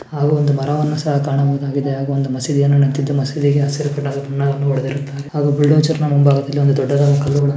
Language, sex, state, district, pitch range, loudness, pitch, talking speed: Kannada, male, Karnataka, Mysore, 140-145 Hz, -16 LUFS, 140 Hz, 125 wpm